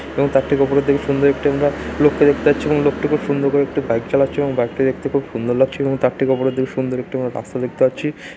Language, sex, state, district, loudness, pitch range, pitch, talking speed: Bengali, male, West Bengal, Dakshin Dinajpur, -18 LUFS, 130-145 Hz, 140 Hz, 265 wpm